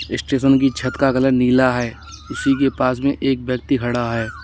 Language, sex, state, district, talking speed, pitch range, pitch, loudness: Hindi, male, Uttar Pradesh, Lalitpur, 200 wpm, 125-135 Hz, 130 Hz, -18 LUFS